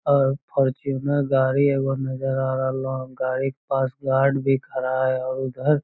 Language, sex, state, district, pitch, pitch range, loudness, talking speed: Magahi, male, Bihar, Lakhisarai, 135 Hz, 130-135 Hz, -23 LUFS, 185 wpm